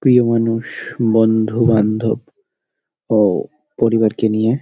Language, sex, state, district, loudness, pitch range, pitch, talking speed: Bengali, male, West Bengal, Dakshin Dinajpur, -16 LUFS, 110-120 Hz, 115 Hz, 90 wpm